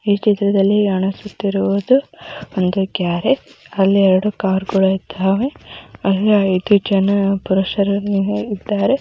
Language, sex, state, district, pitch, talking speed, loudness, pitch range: Kannada, female, Karnataka, Mysore, 200 Hz, 85 wpm, -17 LUFS, 195-205 Hz